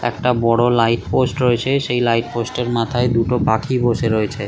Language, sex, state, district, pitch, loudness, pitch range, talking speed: Bengali, male, West Bengal, Kolkata, 120 Hz, -17 LUFS, 115-125 Hz, 175 wpm